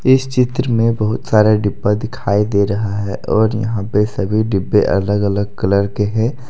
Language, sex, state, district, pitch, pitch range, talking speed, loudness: Hindi, male, Jharkhand, Deoghar, 105 Hz, 100-115 Hz, 185 wpm, -16 LUFS